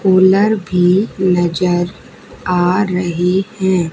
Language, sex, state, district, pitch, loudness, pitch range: Hindi, female, Haryana, Charkhi Dadri, 185 Hz, -14 LUFS, 180-190 Hz